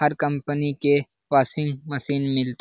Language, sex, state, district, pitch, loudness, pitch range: Hindi, male, Bihar, Lakhisarai, 145 Hz, -23 LUFS, 135-145 Hz